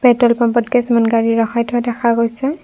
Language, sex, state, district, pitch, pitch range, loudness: Assamese, female, Assam, Kamrup Metropolitan, 235 Hz, 230-245 Hz, -15 LUFS